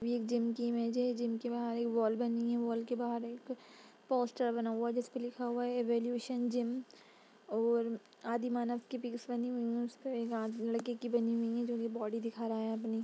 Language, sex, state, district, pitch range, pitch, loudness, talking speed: Hindi, female, Uttar Pradesh, Budaun, 230-245 Hz, 235 Hz, -36 LUFS, 205 wpm